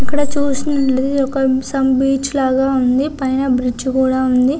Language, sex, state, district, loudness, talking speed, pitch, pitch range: Telugu, female, Andhra Pradesh, Visakhapatnam, -16 LUFS, 130 wpm, 265 Hz, 260-275 Hz